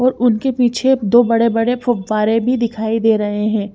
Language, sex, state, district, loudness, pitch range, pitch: Hindi, female, Chandigarh, Chandigarh, -16 LUFS, 215-245 Hz, 230 Hz